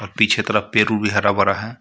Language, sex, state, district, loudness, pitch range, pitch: Hindi, male, Jharkhand, Ranchi, -18 LUFS, 105-110 Hz, 105 Hz